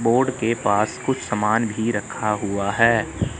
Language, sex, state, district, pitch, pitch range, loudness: Hindi, male, Chandigarh, Chandigarh, 110 Hz, 105-115 Hz, -21 LUFS